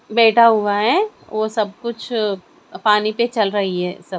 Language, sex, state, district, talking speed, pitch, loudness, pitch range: Hindi, female, Chandigarh, Chandigarh, 170 wpm, 215 Hz, -18 LUFS, 205-230 Hz